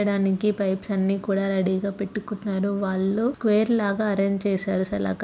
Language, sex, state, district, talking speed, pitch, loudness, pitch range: Telugu, female, Andhra Pradesh, Krishna, 150 wpm, 200 Hz, -24 LUFS, 195-205 Hz